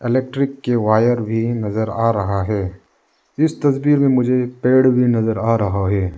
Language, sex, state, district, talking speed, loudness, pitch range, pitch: Hindi, male, Arunachal Pradesh, Lower Dibang Valley, 175 wpm, -17 LUFS, 110-130 Hz, 115 Hz